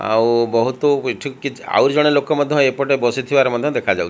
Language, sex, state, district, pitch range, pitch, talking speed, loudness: Odia, male, Odisha, Malkangiri, 120-145 Hz, 140 Hz, 190 wpm, -17 LUFS